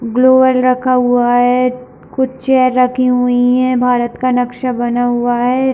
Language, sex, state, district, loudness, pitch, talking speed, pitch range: Hindi, female, Chhattisgarh, Bilaspur, -13 LUFS, 250 Hz, 155 wpm, 245-255 Hz